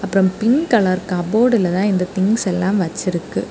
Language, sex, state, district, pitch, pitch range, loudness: Tamil, female, Tamil Nadu, Kanyakumari, 195 Hz, 185-215 Hz, -17 LUFS